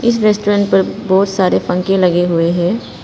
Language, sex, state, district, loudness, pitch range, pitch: Hindi, female, Arunachal Pradesh, Papum Pare, -14 LUFS, 180-205 Hz, 195 Hz